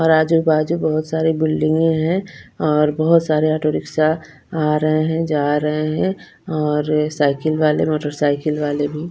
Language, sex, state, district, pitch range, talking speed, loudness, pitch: Hindi, female, Bihar, Patna, 150-160 Hz, 165 wpm, -18 LUFS, 155 Hz